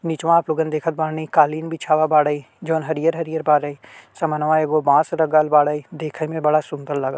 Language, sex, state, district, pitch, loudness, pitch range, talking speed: Bhojpuri, male, Uttar Pradesh, Ghazipur, 155 Hz, -19 LUFS, 150-160 Hz, 185 wpm